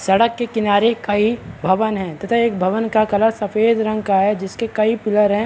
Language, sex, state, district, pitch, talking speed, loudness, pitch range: Hindi, male, Bihar, Araria, 215 Hz, 210 wpm, -18 LUFS, 205-225 Hz